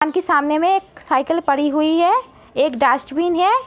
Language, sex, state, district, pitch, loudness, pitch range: Hindi, female, Uttar Pradesh, Etah, 310 Hz, -18 LUFS, 285-360 Hz